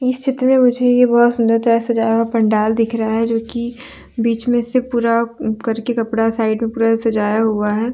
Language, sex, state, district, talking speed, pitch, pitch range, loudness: Hindi, female, Jharkhand, Deoghar, 210 wpm, 230 Hz, 225-240 Hz, -16 LUFS